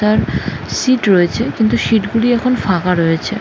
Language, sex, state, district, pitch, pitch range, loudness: Bengali, female, West Bengal, Jhargram, 215 Hz, 180-235 Hz, -15 LUFS